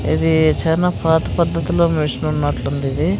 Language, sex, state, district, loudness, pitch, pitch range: Telugu, female, Andhra Pradesh, Sri Satya Sai, -17 LUFS, 145 Hz, 95-160 Hz